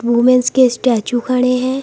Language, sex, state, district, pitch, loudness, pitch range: Hindi, female, Uttar Pradesh, Lucknow, 250 Hz, -14 LUFS, 240-255 Hz